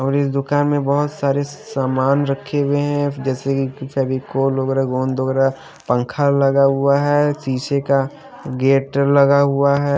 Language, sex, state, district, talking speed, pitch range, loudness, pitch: Hindi, male, Haryana, Jhajjar, 155 wpm, 135-140 Hz, -18 LUFS, 140 Hz